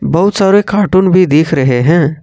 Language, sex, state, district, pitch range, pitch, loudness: Hindi, male, Jharkhand, Ranchi, 155-195 Hz, 180 Hz, -10 LUFS